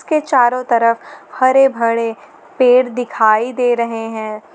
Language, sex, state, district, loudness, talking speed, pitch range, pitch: Hindi, female, Jharkhand, Garhwa, -15 LUFS, 130 wpm, 225-255 Hz, 240 Hz